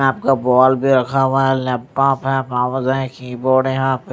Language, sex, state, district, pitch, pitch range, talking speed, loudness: Hindi, male, Odisha, Nuapada, 130 Hz, 130-135 Hz, 220 wpm, -17 LUFS